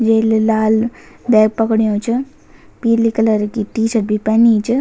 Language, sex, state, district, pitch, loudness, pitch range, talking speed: Garhwali, female, Uttarakhand, Tehri Garhwal, 225 Hz, -15 LUFS, 220-230 Hz, 160 wpm